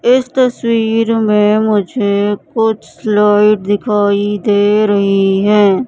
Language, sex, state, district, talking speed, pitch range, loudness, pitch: Hindi, female, Madhya Pradesh, Katni, 100 wpm, 205-225 Hz, -12 LUFS, 210 Hz